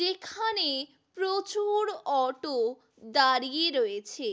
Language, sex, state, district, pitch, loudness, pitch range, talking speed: Bengali, female, West Bengal, Paschim Medinipur, 335 Hz, -28 LUFS, 265-415 Hz, 70 wpm